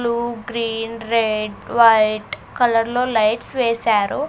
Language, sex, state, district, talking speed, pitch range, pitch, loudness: Telugu, female, Andhra Pradesh, Sri Satya Sai, 110 wpm, 220-240 Hz, 230 Hz, -18 LUFS